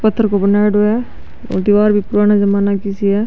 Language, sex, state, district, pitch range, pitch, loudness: Rajasthani, male, Rajasthan, Nagaur, 200-210 Hz, 205 Hz, -14 LUFS